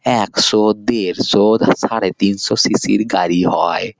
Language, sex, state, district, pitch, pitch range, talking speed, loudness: Bengali, male, West Bengal, Purulia, 100 Hz, 90-105 Hz, 120 wpm, -15 LUFS